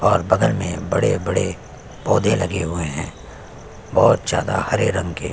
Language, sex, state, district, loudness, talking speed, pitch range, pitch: Hindi, male, Chhattisgarh, Sukma, -20 LUFS, 145 wpm, 80-95 Hz, 85 Hz